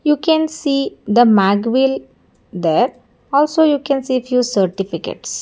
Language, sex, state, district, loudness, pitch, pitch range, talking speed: English, female, Karnataka, Bangalore, -16 LUFS, 265 Hz, 225-295 Hz, 155 wpm